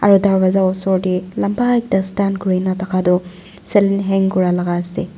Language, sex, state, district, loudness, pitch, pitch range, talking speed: Nagamese, female, Nagaland, Dimapur, -17 LUFS, 190 Hz, 185-195 Hz, 160 wpm